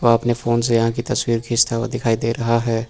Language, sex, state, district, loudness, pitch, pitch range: Hindi, male, Uttar Pradesh, Lucknow, -19 LUFS, 115 Hz, 115-120 Hz